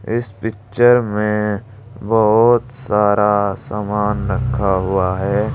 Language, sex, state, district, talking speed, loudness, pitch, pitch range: Hindi, male, Uttar Pradesh, Saharanpur, 95 wpm, -17 LUFS, 105 Hz, 105-115 Hz